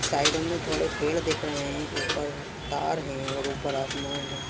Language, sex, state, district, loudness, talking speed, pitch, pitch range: Hindi, male, Uttar Pradesh, Muzaffarnagar, -29 LUFS, 185 wpm, 140 Hz, 135-140 Hz